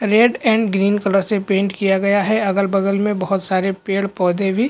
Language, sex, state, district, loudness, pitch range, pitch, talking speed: Hindi, male, Bihar, Lakhisarai, -17 LUFS, 195-210 Hz, 195 Hz, 205 wpm